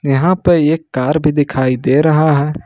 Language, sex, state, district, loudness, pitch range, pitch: Hindi, male, Jharkhand, Ranchi, -13 LUFS, 135-155 Hz, 150 Hz